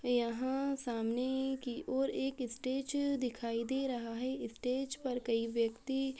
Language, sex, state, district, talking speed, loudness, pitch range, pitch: Hindi, female, Chhattisgarh, Balrampur, 135 wpm, -36 LUFS, 235-270 Hz, 255 Hz